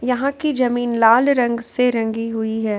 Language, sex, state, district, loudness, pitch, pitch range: Hindi, female, Jharkhand, Ranchi, -18 LUFS, 240 Hz, 225-250 Hz